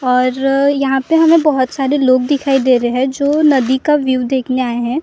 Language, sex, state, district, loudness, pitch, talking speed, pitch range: Hindi, female, Maharashtra, Gondia, -13 LUFS, 270 Hz, 250 wpm, 255-285 Hz